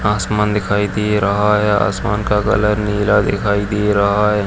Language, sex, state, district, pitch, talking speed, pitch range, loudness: Hindi, male, Chhattisgarh, Jashpur, 105 Hz, 175 wpm, 100-105 Hz, -16 LUFS